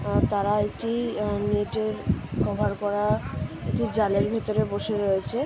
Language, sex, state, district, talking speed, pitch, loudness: Bengali, female, West Bengal, Dakshin Dinajpur, 145 wpm, 205 Hz, -26 LUFS